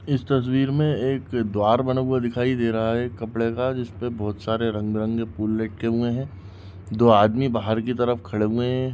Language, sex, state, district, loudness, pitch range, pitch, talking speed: Hindi, male, Goa, North and South Goa, -23 LUFS, 110-125 Hz, 115 Hz, 210 wpm